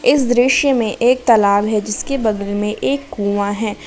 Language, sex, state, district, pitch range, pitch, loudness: Hindi, female, Jharkhand, Palamu, 205-255 Hz, 220 Hz, -16 LUFS